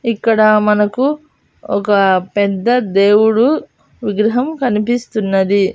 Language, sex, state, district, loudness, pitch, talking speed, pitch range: Telugu, female, Andhra Pradesh, Annamaya, -14 LUFS, 215 Hz, 75 wpm, 200-245 Hz